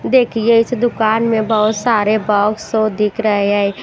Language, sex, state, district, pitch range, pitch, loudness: Hindi, female, Himachal Pradesh, Shimla, 210-230 Hz, 220 Hz, -15 LUFS